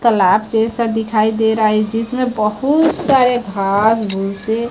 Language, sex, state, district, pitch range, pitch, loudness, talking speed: Hindi, male, Chhattisgarh, Raipur, 215-240 Hz, 220 Hz, -15 LUFS, 140 wpm